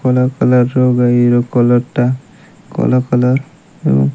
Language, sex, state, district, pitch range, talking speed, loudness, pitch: Odia, male, Odisha, Malkangiri, 120-130 Hz, 160 wpm, -13 LUFS, 125 Hz